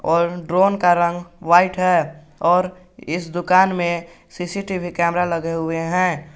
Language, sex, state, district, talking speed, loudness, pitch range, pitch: Hindi, male, Jharkhand, Garhwa, 140 wpm, -19 LUFS, 170-180 Hz, 175 Hz